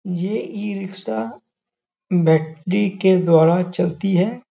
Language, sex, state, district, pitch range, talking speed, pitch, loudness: Hindi, male, Uttar Pradesh, Gorakhpur, 165-195 Hz, 105 wpm, 180 Hz, -19 LUFS